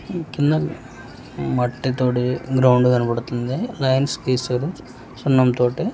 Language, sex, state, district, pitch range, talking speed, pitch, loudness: Telugu, male, Telangana, Hyderabad, 125-140 Hz, 70 wpm, 130 Hz, -20 LUFS